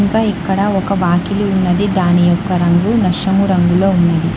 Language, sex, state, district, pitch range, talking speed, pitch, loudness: Telugu, female, Telangana, Hyderabad, 175-200 Hz, 150 wpm, 190 Hz, -14 LUFS